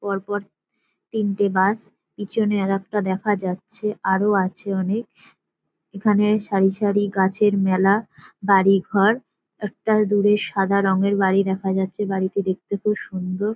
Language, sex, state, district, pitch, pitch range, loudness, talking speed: Bengali, female, West Bengal, North 24 Parganas, 200 Hz, 190-210 Hz, -21 LUFS, 130 wpm